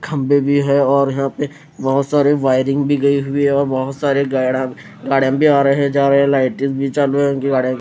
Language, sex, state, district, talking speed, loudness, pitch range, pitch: Hindi, female, Punjab, Fazilka, 245 wpm, -16 LUFS, 135-140 Hz, 140 Hz